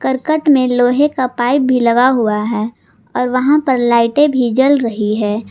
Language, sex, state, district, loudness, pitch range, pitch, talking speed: Hindi, female, Jharkhand, Garhwa, -13 LUFS, 235-265 Hz, 250 Hz, 185 wpm